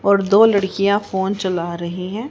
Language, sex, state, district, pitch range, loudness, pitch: Hindi, female, Haryana, Rohtak, 185-205 Hz, -18 LUFS, 195 Hz